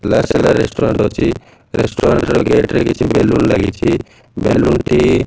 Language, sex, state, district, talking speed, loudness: Odia, male, Odisha, Malkangiri, 135 wpm, -14 LUFS